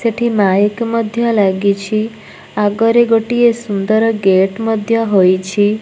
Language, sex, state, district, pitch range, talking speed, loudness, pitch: Odia, female, Odisha, Nuapada, 200-230 Hz, 105 wpm, -14 LUFS, 215 Hz